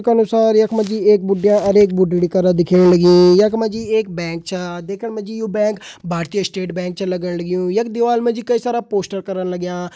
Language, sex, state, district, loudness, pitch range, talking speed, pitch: Hindi, male, Uttarakhand, Tehri Garhwal, -16 LUFS, 180-220 Hz, 230 wpm, 195 Hz